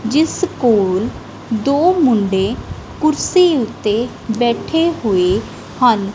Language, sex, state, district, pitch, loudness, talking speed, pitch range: Punjabi, female, Punjab, Kapurthala, 235 Hz, -16 LUFS, 90 wpm, 210-305 Hz